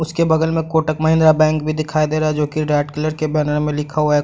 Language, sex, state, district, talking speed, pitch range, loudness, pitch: Hindi, male, Bihar, Madhepura, 295 wpm, 150-160 Hz, -17 LUFS, 155 Hz